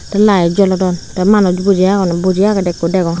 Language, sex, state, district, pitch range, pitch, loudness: Chakma, female, Tripura, Unakoti, 175-200 Hz, 185 Hz, -13 LUFS